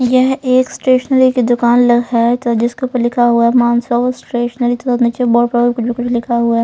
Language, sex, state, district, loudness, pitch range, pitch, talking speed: Hindi, male, Punjab, Pathankot, -13 LUFS, 240-250 Hz, 240 Hz, 210 wpm